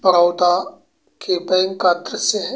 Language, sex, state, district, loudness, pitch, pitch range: Bhojpuri, male, Uttar Pradesh, Gorakhpur, -18 LUFS, 185 Hz, 175-190 Hz